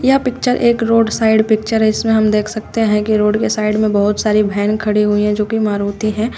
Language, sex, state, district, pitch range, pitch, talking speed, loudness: Hindi, female, Uttar Pradesh, Shamli, 210-225 Hz, 215 Hz, 255 wpm, -15 LUFS